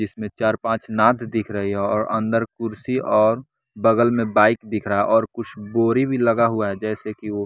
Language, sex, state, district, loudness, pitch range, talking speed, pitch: Hindi, male, Bihar, West Champaran, -20 LUFS, 105-115 Hz, 210 wpm, 110 Hz